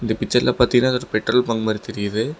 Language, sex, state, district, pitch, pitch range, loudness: Tamil, male, Tamil Nadu, Namakkal, 120 Hz, 110-125 Hz, -20 LUFS